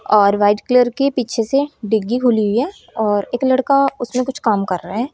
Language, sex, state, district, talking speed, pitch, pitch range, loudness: Hindi, female, Haryana, Rohtak, 220 wpm, 240 Hz, 210-260 Hz, -17 LUFS